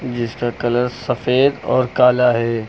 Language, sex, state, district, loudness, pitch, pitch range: Hindi, male, Uttar Pradesh, Lucknow, -17 LUFS, 125 Hz, 120-125 Hz